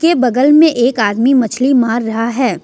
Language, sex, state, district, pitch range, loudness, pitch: Hindi, female, Jharkhand, Ranchi, 230-270 Hz, -12 LUFS, 250 Hz